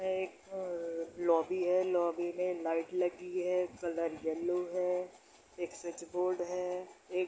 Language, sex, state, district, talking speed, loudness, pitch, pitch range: Hindi, male, Bihar, Darbhanga, 175 wpm, -35 LUFS, 180 Hz, 170-180 Hz